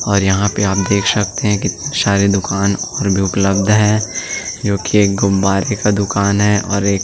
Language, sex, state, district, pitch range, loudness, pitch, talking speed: Hindi, male, Chhattisgarh, Sukma, 100-105 Hz, -15 LUFS, 100 Hz, 205 wpm